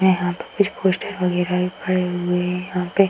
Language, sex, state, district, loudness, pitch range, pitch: Hindi, female, Uttar Pradesh, Hamirpur, -21 LUFS, 180-190 Hz, 180 Hz